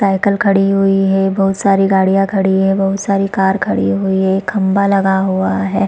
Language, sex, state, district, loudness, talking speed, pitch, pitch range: Hindi, female, Chhattisgarh, Bastar, -14 LUFS, 205 wpm, 195 Hz, 190-195 Hz